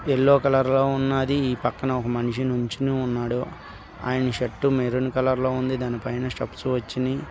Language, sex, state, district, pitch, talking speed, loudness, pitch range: Telugu, male, Andhra Pradesh, Visakhapatnam, 130 Hz, 165 wpm, -24 LUFS, 125-135 Hz